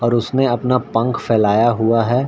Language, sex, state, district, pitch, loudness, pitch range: Hindi, male, Bihar, Saran, 120 Hz, -16 LUFS, 115-125 Hz